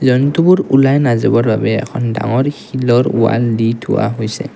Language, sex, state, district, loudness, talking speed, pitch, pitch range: Assamese, male, Assam, Kamrup Metropolitan, -14 LUFS, 145 wpm, 120 Hz, 115-135 Hz